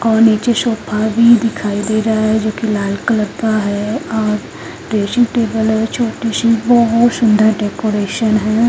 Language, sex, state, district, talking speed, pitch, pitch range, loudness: Hindi, female, Haryana, Charkhi Dadri, 165 wpm, 220 Hz, 215-230 Hz, -14 LUFS